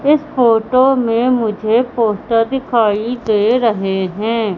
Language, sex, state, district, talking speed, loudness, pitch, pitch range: Hindi, female, Madhya Pradesh, Katni, 120 wpm, -15 LUFS, 230 Hz, 215-250 Hz